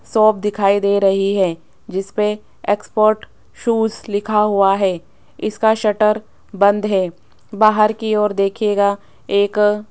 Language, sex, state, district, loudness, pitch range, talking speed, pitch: Hindi, female, Rajasthan, Jaipur, -17 LUFS, 200-215 Hz, 135 wpm, 210 Hz